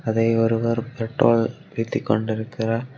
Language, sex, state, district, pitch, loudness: Tamil, male, Tamil Nadu, Kanyakumari, 115 Hz, -22 LUFS